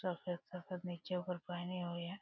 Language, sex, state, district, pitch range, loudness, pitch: Hindi, female, Uttar Pradesh, Deoria, 175-180 Hz, -43 LUFS, 180 Hz